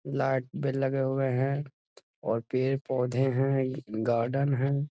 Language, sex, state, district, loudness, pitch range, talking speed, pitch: Hindi, male, Bihar, Jahanabad, -29 LUFS, 130-135 Hz, 120 wpm, 135 Hz